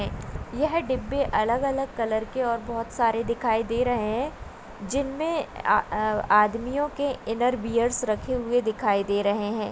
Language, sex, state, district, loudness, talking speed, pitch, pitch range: Hindi, female, Rajasthan, Nagaur, -26 LUFS, 140 wpm, 235 Hz, 220-260 Hz